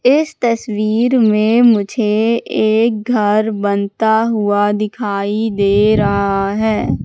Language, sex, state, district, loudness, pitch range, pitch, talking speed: Hindi, female, Madhya Pradesh, Katni, -15 LUFS, 205-230 Hz, 215 Hz, 100 wpm